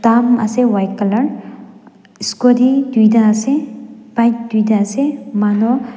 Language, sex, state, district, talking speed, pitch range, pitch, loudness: Nagamese, female, Nagaland, Dimapur, 110 wpm, 215-250 Hz, 235 Hz, -14 LUFS